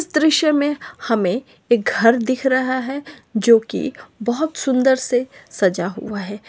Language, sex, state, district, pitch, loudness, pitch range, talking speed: Magahi, female, Bihar, Samastipur, 255 Hz, -19 LUFS, 225-280 Hz, 150 wpm